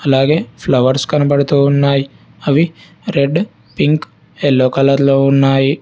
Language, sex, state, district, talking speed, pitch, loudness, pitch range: Telugu, male, Telangana, Hyderabad, 115 wpm, 140 Hz, -14 LUFS, 135-145 Hz